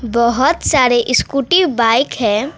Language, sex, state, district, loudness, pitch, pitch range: Hindi, female, West Bengal, Alipurduar, -14 LUFS, 245 Hz, 235-275 Hz